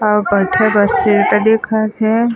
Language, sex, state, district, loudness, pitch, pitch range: Chhattisgarhi, female, Chhattisgarh, Sarguja, -13 LUFS, 215 Hz, 205-220 Hz